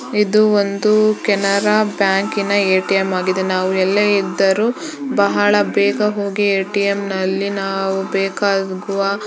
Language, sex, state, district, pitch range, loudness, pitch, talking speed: Kannada, female, Karnataka, Shimoga, 195-205 Hz, -16 LUFS, 200 Hz, 110 wpm